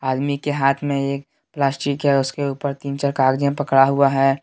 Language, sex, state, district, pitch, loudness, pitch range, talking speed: Hindi, male, Jharkhand, Deoghar, 140 Hz, -20 LUFS, 135-140 Hz, 205 wpm